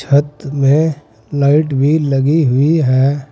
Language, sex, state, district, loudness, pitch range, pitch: Hindi, male, Uttar Pradesh, Saharanpur, -13 LUFS, 135-150 Hz, 140 Hz